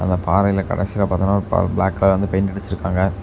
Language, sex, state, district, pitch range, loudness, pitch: Tamil, male, Tamil Nadu, Namakkal, 95-100 Hz, -19 LUFS, 95 Hz